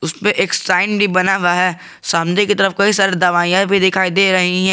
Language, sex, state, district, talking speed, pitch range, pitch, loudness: Hindi, male, Jharkhand, Garhwa, 240 wpm, 180-195 Hz, 190 Hz, -14 LUFS